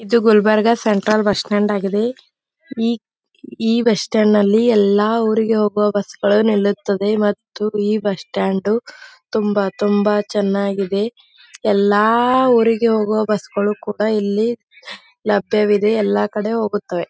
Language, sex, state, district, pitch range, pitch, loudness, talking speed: Kannada, female, Karnataka, Gulbarga, 205-225 Hz, 210 Hz, -17 LUFS, 115 wpm